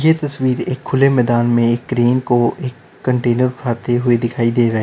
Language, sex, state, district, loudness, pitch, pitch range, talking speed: Hindi, male, Uttar Pradesh, Lalitpur, -16 LUFS, 120 Hz, 120-130 Hz, 200 wpm